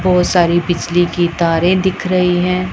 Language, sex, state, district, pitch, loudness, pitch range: Hindi, female, Punjab, Pathankot, 175 Hz, -14 LUFS, 175-180 Hz